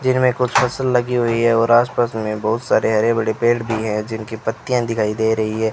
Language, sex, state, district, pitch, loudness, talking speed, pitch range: Hindi, male, Rajasthan, Bikaner, 115 Hz, -18 LUFS, 240 wpm, 110-120 Hz